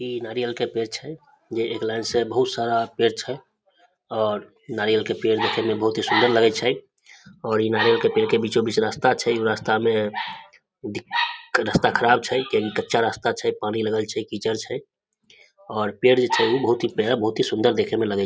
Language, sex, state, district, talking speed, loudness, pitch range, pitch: Maithili, male, Bihar, Samastipur, 205 wpm, -22 LUFS, 110-155 Hz, 115 Hz